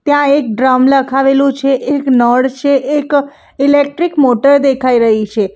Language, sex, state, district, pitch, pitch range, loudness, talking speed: Gujarati, female, Gujarat, Valsad, 275 Hz, 255-285 Hz, -11 LUFS, 150 wpm